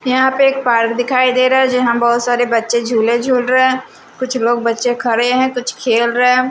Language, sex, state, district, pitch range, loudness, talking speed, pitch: Hindi, female, Maharashtra, Washim, 235-255 Hz, -14 LUFS, 210 wpm, 245 Hz